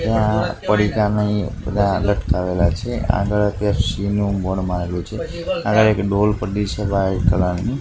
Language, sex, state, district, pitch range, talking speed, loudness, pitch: Gujarati, male, Gujarat, Gandhinagar, 95-105 Hz, 155 wpm, -19 LUFS, 100 Hz